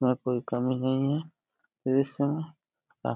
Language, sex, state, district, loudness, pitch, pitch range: Hindi, male, Uttar Pradesh, Deoria, -29 LUFS, 135 Hz, 130-155 Hz